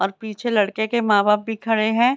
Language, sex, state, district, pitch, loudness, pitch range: Hindi, female, Bihar, Begusarai, 220 Hz, -20 LUFS, 210-225 Hz